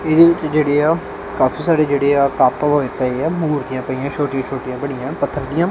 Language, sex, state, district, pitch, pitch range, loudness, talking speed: Punjabi, male, Punjab, Kapurthala, 140 Hz, 130-155 Hz, -17 LUFS, 200 wpm